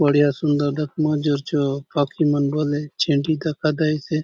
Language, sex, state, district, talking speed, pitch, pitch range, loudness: Halbi, male, Chhattisgarh, Bastar, 155 wpm, 150 Hz, 145-155 Hz, -21 LUFS